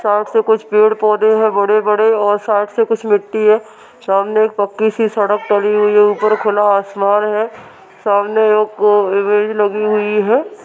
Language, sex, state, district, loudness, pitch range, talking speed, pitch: Hindi, female, Uttar Pradesh, Budaun, -14 LUFS, 205-220 Hz, 175 wpm, 210 Hz